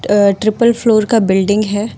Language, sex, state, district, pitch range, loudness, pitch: Hindi, female, Uttar Pradesh, Lucknow, 205-225 Hz, -13 LUFS, 210 Hz